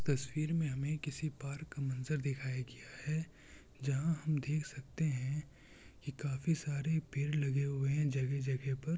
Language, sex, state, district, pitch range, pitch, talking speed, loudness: Hindi, male, Bihar, Kishanganj, 135-155 Hz, 140 Hz, 160 wpm, -37 LUFS